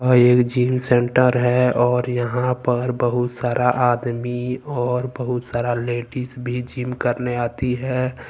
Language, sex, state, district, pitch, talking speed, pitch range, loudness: Hindi, male, Jharkhand, Ranchi, 125 Hz, 145 wpm, 120-125 Hz, -20 LUFS